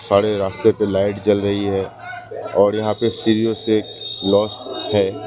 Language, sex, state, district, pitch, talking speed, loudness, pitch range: Hindi, male, West Bengal, Alipurduar, 105 Hz, 160 wpm, -19 LUFS, 100-110 Hz